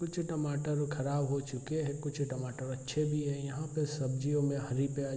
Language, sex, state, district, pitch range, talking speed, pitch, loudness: Hindi, male, Bihar, Araria, 135-150 Hz, 210 wpm, 145 Hz, -35 LUFS